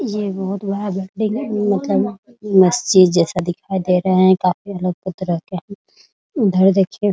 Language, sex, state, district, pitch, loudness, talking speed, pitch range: Hindi, female, Bihar, Muzaffarpur, 195 Hz, -17 LUFS, 125 wpm, 185-205 Hz